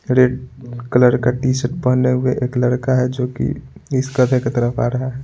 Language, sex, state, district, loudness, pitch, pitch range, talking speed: Hindi, male, Bihar, Patna, -18 LUFS, 125 Hz, 125-130 Hz, 205 wpm